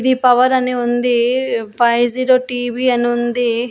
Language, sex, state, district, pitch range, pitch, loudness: Telugu, female, Andhra Pradesh, Annamaya, 240-255 Hz, 245 Hz, -15 LUFS